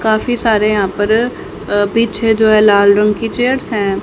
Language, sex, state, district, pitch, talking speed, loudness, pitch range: Hindi, female, Haryana, Rohtak, 215 Hz, 195 wpm, -13 LUFS, 205-225 Hz